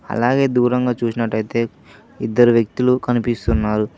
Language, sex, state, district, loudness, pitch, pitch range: Telugu, male, Telangana, Mahabubabad, -18 LUFS, 120 Hz, 115-125 Hz